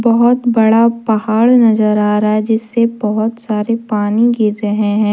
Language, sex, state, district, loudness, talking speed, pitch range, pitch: Hindi, female, Jharkhand, Deoghar, -13 LUFS, 165 wpm, 210-230 Hz, 220 Hz